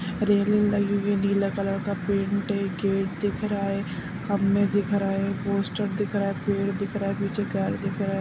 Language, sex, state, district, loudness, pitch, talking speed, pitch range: Kumaoni, male, Uttarakhand, Uttarkashi, -26 LUFS, 200 Hz, 220 wpm, 195-205 Hz